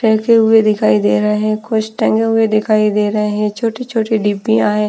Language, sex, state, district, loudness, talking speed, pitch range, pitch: Hindi, female, Bihar, Patna, -14 LUFS, 195 wpm, 210-225 Hz, 215 Hz